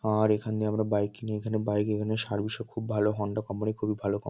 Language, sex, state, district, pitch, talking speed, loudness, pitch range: Bengali, male, West Bengal, North 24 Parganas, 105 Hz, 265 wpm, -29 LUFS, 105-110 Hz